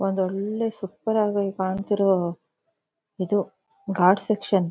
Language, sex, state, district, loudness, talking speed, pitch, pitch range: Kannada, female, Karnataka, Shimoga, -24 LUFS, 115 wpm, 195 Hz, 190-210 Hz